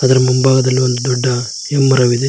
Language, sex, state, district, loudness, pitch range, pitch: Kannada, male, Karnataka, Koppal, -14 LUFS, 125-130 Hz, 130 Hz